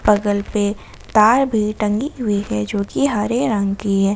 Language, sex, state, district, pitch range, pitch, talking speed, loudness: Hindi, female, Jharkhand, Ranchi, 200-220 Hz, 210 Hz, 200 wpm, -18 LUFS